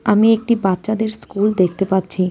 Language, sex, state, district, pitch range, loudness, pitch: Bengali, female, West Bengal, Cooch Behar, 190-220 Hz, -17 LUFS, 205 Hz